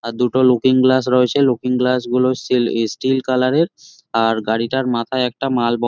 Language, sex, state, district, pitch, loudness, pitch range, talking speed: Bengali, male, West Bengal, Jhargram, 125 Hz, -17 LUFS, 120-130 Hz, 195 wpm